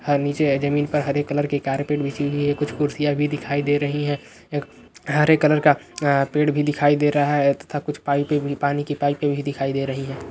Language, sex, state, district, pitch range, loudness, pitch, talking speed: Magahi, male, Bihar, Gaya, 140-150 Hz, -21 LUFS, 145 Hz, 225 wpm